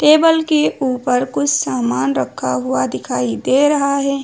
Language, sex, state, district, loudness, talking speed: Hindi, female, Uttar Pradesh, Lucknow, -16 LUFS, 155 wpm